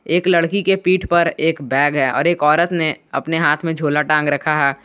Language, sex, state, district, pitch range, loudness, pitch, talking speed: Hindi, male, Jharkhand, Garhwa, 150-170 Hz, -17 LUFS, 160 Hz, 235 wpm